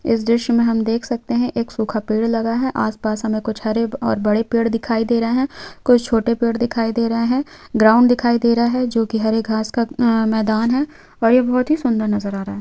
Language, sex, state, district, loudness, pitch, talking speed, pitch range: Hindi, female, Jharkhand, Sahebganj, -18 LUFS, 230 Hz, 245 wpm, 220-245 Hz